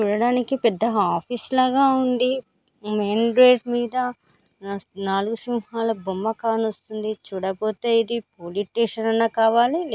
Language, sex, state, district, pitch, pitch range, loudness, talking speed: Telugu, female, Andhra Pradesh, Krishna, 225 Hz, 205-245 Hz, -22 LUFS, 125 wpm